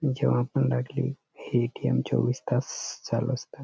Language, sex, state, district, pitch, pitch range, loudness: Marathi, male, Maharashtra, Dhule, 130 Hz, 125-135 Hz, -28 LUFS